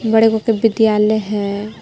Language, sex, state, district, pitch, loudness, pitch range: Magahi, female, Jharkhand, Palamu, 220 Hz, -15 LUFS, 210-225 Hz